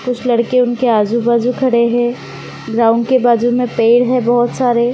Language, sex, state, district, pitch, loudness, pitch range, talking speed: Hindi, female, Maharashtra, Aurangabad, 240 Hz, -14 LUFS, 235-250 Hz, 170 wpm